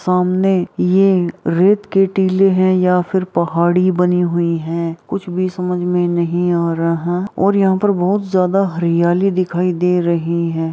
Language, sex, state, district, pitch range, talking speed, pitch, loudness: Hindi, female, Bihar, Araria, 170-190 Hz, 160 wpm, 180 Hz, -16 LUFS